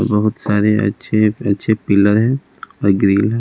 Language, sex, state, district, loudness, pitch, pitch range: Hindi, male, Delhi, New Delhi, -16 LUFS, 105 Hz, 100-110 Hz